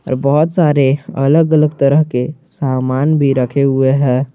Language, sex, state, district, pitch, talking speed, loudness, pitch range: Hindi, male, Jharkhand, Garhwa, 140 Hz, 165 wpm, -13 LUFS, 130-150 Hz